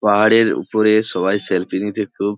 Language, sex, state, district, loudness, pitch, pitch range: Bengali, male, West Bengal, Jhargram, -16 LUFS, 105 Hz, 105-110 Hz